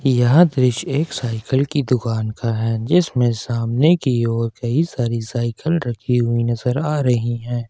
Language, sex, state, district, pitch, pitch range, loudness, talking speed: Hindi, male, Jharkhand, Ranchi, 120 Hz, 115-135 Hz, -19 LUFS, 165 wpm